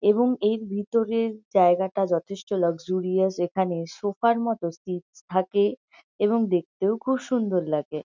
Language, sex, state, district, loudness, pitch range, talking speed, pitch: Bengali, female, West Bengal, Kolkata, -25 LUFS, 180-220 Hz, 125 wpm, 195 Hz